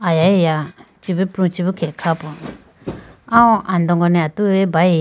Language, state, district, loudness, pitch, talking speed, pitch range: Idu Mishmi, Arunachal Pradesh, Lower Dibang Valley, -16 LUFS, 175 Hz, 130 wpm, 165-190 Hz